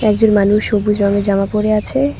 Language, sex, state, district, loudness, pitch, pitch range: Bengali, female, West Bengal, Cooch Behar, -14 LUFS, 210 Hz, 205-215 Hz